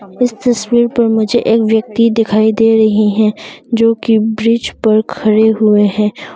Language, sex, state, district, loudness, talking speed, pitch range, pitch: Hindi, female, Arunachal Pradesh, Longding, -12 LUFS, 150 wpm, 215-230 Hz, 220 Hz